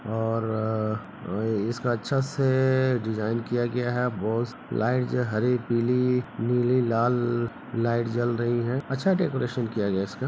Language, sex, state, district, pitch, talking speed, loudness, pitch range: Hindi, male, Bihar, Begusarai, 120 Hz, 160 wpm, -26 LUFS, 115-125 Hz